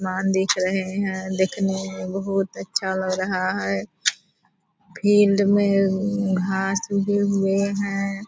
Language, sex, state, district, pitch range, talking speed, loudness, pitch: Hindi, female, Bihar, Purnia, 190-200 Hz, 130 wpm, -22 LUFS, 195 Hz